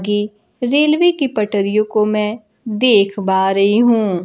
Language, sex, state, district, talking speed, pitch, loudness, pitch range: Hindi, female, Bihar, Kaimur, 140 wpm, 210 Hz, -15 LUFS, 200-235 Hz